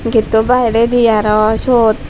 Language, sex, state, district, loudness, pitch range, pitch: Chakma, female, Tripura, Dhalai, -12 LUFS, 220-240 Hz, 225 Hz